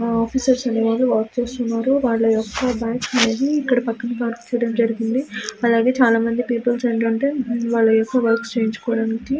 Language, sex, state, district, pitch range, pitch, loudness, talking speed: Telugu, female, Andhra Pradesh, Srikakulam, 230-250 Hz, 235 Hz, -19 LUFS, 95 wpm